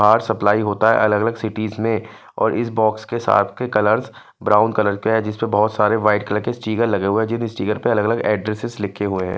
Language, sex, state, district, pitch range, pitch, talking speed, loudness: Hindi, male, Punjab, Fazilka, 105-115 Hz, 110 Hz, 245 wpm, -19 LUFS